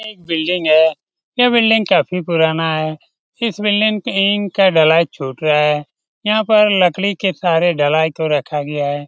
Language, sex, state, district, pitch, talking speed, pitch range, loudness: Hindi, male, Bihar, Lakhisarai, 170 Hz, 180 wpm, 155-205 Hz, -15 LUFS